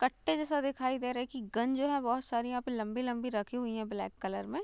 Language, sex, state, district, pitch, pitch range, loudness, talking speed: Hindi, female, Bihar, Gopalganj, 245 Hz, 235-260 Hz, -34 LUFS, 270 wpm